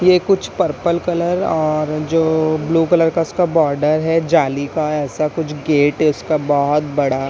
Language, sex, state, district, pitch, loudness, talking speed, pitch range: Hindi, female, Maharashtra, Mumbai Suburban, 155 Hz, -17 LUFS, 170 wpm, 150-165 Hz